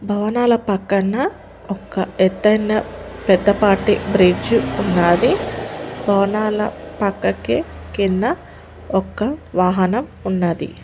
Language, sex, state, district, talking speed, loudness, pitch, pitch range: Telugu, female, Telangana, Mahabubabad, 75 wpm, -18 LUFS, 200 Hz, 185-215 Hz